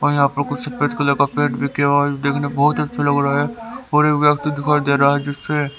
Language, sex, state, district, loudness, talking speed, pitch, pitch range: Hindi, male, Haryana, Rohtak, -18 LUFS, 270 wpm, 145 Hz, 140-150 Hz